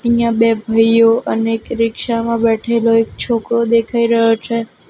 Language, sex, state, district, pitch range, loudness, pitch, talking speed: Gujarati, female, Gujarat, Gandhinagar, 225-235 Hz, -14 LUFS, 230 Hz, 160 wpm